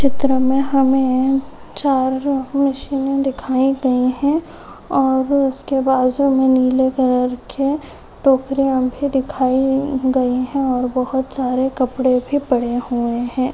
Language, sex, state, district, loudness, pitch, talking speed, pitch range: Hindi, female, Uttar Pradesh, Hamirpur, -18 LUFS, 265 Hz, 130 wpm, 255-275 Hz